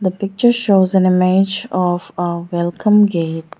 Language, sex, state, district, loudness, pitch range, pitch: English, female, Arunachal Pradesh, Lower Dibang Valley, -16 LUFS, 175-195 Hz, 185 Hz